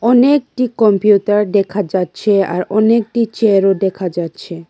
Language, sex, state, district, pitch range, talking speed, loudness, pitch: Bengali, female, Tripura, West Tripura, 195-225 Hz, 115 wpm, -14 LUFS, 205 Hz